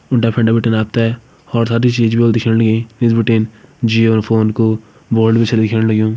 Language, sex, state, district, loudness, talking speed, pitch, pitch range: Hindi, male, Uttarakhand, Uttarkashi, -14 LUFS, 225 wpm, 115 Hz, 110-115 Hz